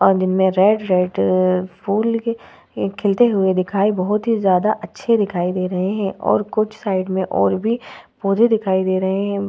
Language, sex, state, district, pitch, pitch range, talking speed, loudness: Hindi, female, Uttar Pradesh, Budaun, 195 Hz, 185-215 Hz, 175 wpm, -18 LUFS